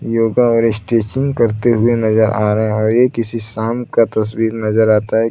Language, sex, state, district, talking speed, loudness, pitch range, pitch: Hindi, male, Bihar, Saran, 205 wpm, -15 LUFS, 110-115 Hz, 115 Hz